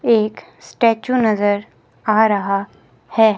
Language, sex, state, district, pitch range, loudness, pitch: Hindi, female, Himachal Pradesh, Shimla, 205-230 Hz, -18 LUFS, 215 Hz